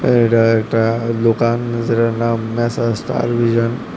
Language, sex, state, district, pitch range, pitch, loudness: Bengali, male, Tripura, West Tripura, 115-120 Hz, 115 Hz, -16 LUFS